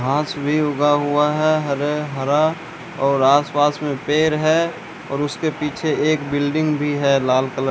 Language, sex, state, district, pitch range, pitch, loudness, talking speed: Hindi, male, Rajasthan, Bikaner, 140-155 Hz, 145 Hz, -19 LUFS, 180 wpm